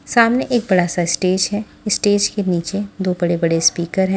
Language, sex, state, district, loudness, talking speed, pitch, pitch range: Hindi, female, Maharashtra, Washim, -17 LUFS, 200 wpm, 190 Hz, 175-205 Hz